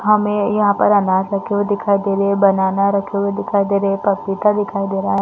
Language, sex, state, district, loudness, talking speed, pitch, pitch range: Hindi, female, Chhattisgarh, Balrampur, -17 LUFS, 265 wpm, 200 Hz, 195-205 Hz